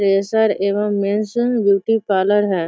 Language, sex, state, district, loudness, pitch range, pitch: Hindi, female, Bihar, Sitamarhi, -17 LUFS, 200-220 Hz, 205 Hz